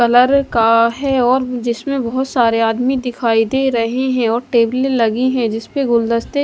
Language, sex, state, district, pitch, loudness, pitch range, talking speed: Hindi, female, Odisha, Malkangiri, 245 Hz, -15 LUFS, 230-260 Hz, 175 wpm